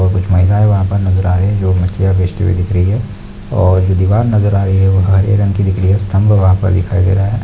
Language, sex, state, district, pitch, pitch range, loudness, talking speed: Hindi, male, Rajasthan, Nagaur, 95 Hz, 95-100 Hz, -12 LUFS, 300 wpm